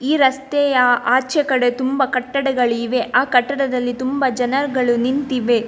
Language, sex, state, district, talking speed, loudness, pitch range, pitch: Kannada, female, Karnataka, Dakshina Kannada, 115 wpm, -18 LUFS, 245-270 Hz, 255 Hz